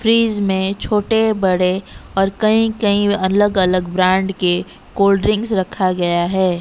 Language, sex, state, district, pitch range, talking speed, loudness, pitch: Hindi, female, Odisha, Malkangiri, 185-210 Hz, 145 wpm, -16 LUFS, 195 Hz